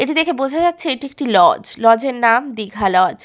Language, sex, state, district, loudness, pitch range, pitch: Bengali, female, West Bengal, Paschim Medinipur, -16 LUFS, 230-295 Hz, 260 Hz